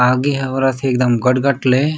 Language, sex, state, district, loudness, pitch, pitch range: Chhattisgarhi, male, Chhattisgarh, Raigarh, -16 LUFS, 130 Hz, 125-135 Hz